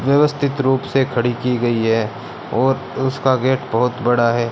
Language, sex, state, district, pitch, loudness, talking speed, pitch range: Hindi, male, Rajasthan, Bikaner, 125 Hz, -18 LUFS, 170 wpm, 120-135 Hz